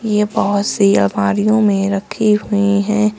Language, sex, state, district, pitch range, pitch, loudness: Hindi, female, Uttar Pradesh, Saharanpur, 195-210 Hz, 205 Hz, -15 LUFS